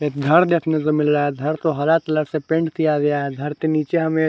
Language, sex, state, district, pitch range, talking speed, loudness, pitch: Hindi, male, Haryana, Charkhi Dadri, 150-160 Hz, 280 wpm, -19 LUFS, 155 Hz